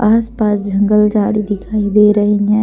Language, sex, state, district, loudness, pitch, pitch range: Hindi, female, Jharkhand, Deoghar, -13 LUFS, 210 Hz, 205-215 Hz